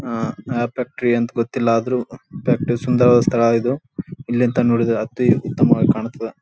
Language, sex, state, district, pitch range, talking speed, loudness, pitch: Kannada, male, Karnataka, Bijapur, 115-125 Hz, 160 wpm, -18 LUFS, 120 Hz